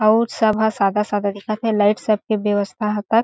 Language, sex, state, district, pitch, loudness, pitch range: Chhattisgarhi, female, Chhattisgarh, Sarguja, 215 Hz, -19 LUFS, 205-220 Hz